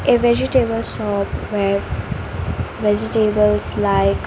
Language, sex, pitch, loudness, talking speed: English, female, 210 Hz, -19 LUFS, 100 wpm